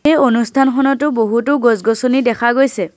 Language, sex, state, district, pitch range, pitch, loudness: Assamese, female, Assam, Sonitpur, 235-275 Hz, 255 Hz, -14 LUFS